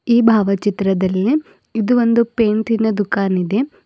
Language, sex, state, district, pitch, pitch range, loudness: Kannada, female, Karnataka, Bidar, 220 Hz, 200-235 Hz, -17 LUFS